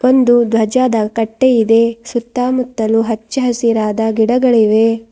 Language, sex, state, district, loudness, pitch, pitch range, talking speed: Kannada, female, Karnataka, Bidar, -14 LUFS, 230 Hz, 225-250 Hz, 80 wpm